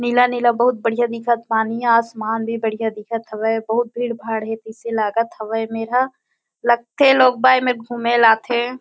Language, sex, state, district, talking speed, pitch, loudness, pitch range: Chhattisgarhi, female, Chhattisgarh, Kabirdham, 165 wpm, 230 Hz, -18 LUFS, 225-240 Hz